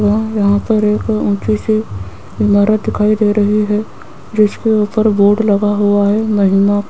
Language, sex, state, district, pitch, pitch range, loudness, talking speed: Hindi, female, Rajasthan, Jaipur, 205 Hz, 195-210 Hz, -13 LUFS, 165 wpm